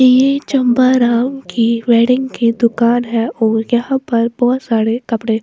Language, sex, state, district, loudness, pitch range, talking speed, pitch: Hindi, female, Bihar, West Champaran, -14 LUFS, 230-255 Hz, 155 wpm, 240 Hz